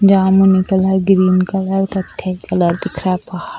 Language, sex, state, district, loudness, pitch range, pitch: Hindi, female, Bihar, Sitamarhi, -15 LUFS, 185-195 Hz, 190 Hz